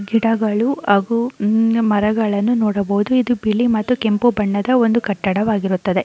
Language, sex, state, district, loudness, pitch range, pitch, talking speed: Kannada, female, Karnataka, Chamarajanagar, -17 LUFS, 205-235 Hz, 220 Hz, 120 wpm